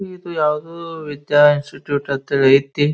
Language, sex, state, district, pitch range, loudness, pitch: Kannada, male, Karnataka, Bijapur, 140-160 Hz, -17 LUFS, 145 Hz